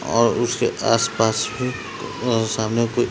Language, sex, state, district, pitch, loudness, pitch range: Hindi, male, Bihar, Patna, 115 Hz, -21 LUFS, 110-120 Hz